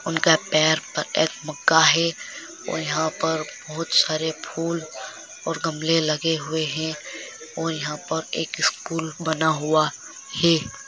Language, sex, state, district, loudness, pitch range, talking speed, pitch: Hindi, male, Andhra Pradesh, Chittoor, -22 LUFS, 155-165 Hz, 140 wpm, 160 Hz